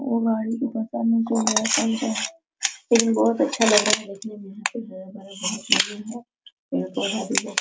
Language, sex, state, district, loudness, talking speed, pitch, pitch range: Hindi, female, Bihar, Araria, -22 LUFS, 120 wpm, 225 Hz, 210-235 Hz